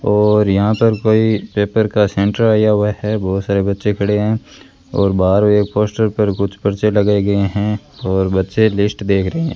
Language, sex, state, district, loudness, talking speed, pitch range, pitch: Hindi, male, Rajasthan, Bikaner, -15 LUFS, 195 wpm, 100-105 Hz, 105 Hz